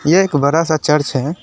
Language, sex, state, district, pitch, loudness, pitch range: Hindi, male, West Bengal, Alipurduar, 150 Hz, -15 LUFS, 145-165 Hz